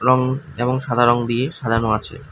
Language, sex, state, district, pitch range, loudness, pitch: Bengali, male, Tripura, West Tripura, 115-130 Hz, -19 LUFS, 120 Hz